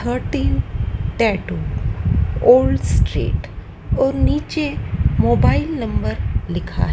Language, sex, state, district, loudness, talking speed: Hindi, female, Madhya Pradesh, Dhar, -19 LUFS, 80 wpm